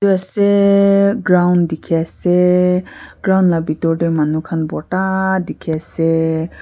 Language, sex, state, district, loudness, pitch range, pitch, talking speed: Nagamese, female, Nagaland, Kohima, -15 LUFS, 165-190 Hz, 180 Hz, 110 wpm